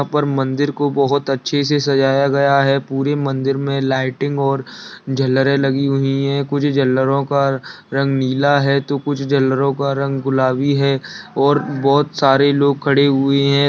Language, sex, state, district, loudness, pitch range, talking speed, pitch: Hindi, male, Bihar, Lakhisarai, -17 LUFS, 135-140 Hz, 170 wpm, 140 Hz